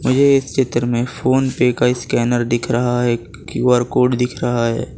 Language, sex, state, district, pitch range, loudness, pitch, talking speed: Hindi, male, Gujarat, Valsad, 120-130 Hz, -17 LUFS, 125 Hz, 190 wpm